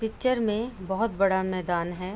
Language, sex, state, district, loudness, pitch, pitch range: Hindi, female, Uttar Pradesh, Budaun, -27 LUFS, 195 Hz, 185-225 Hz